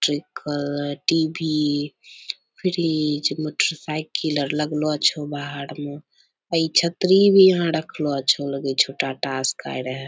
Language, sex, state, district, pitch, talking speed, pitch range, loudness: Angika, female, Bihar, Bhagalpur, 150 Hz, 125 wpm, 145-160 Hz, -21 LUFS